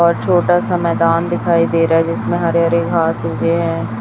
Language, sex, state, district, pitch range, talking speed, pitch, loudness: Hindi, female, Chhattisgarh, Raipur, 165-170 Hz, 210 wpm, 170 Hz, -15 LUFS